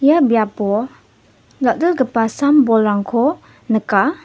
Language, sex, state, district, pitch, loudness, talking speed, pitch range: Garo, female, Meghalaya, West Garo Hills, 240 Hz, -16 LUFS, 85 wpm, 220-285 Hz